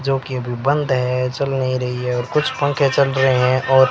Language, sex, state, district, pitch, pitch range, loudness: Hindi, male, Rajasthan, Bikaner, 130 Hz, 125-140 Hz, -18 LUFS